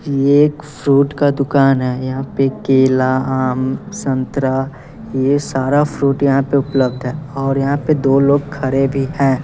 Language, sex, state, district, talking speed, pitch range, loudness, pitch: Hindi, male, Bihar, West Champaran, 165 wpm, 130-140 Hz, -16 LUFS, 135 Hz